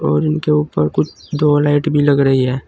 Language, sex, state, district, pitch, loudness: Hindi, male, Uttar Pradesh, Saharanpur, 135 Hz, -15 LUFS